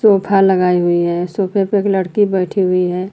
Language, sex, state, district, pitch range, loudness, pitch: Hindi, female, Uttar Pradesh, Lucknow, 180-200 Hz, -15 LUFS, 190 Hz